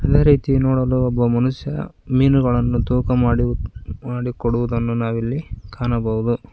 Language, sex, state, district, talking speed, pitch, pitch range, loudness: Kannada, female, Karnataka, Koppal, 100 wpm, 120 Hz, 115-130 Hz, -19 LUFS